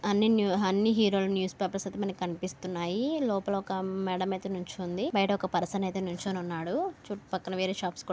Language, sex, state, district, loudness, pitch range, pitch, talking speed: Telugu, female, Andhra Pradesh, Anantapur, -30 LUFS, 185-200 Hz, 190 Hz, 170 wpm